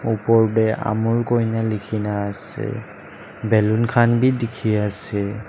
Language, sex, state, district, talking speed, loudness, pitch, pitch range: Nagamese, male, Nagaland, Dimapur, 130 wpm, -20 LUFS, 110 Hz, 105-115 Hz